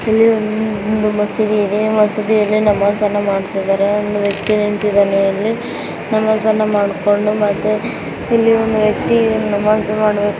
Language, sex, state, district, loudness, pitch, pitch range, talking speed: Kannada, female, Karnataka, Mysore, -15 LUFS, 210 Hz, 205-215 Hz, 125 wpm